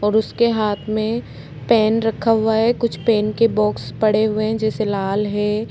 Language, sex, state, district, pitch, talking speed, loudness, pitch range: Hindi, female, Uttar Pradesh, Budaun, 215 Hz, 190 wpm, -19 LUFS, 210-225 Hz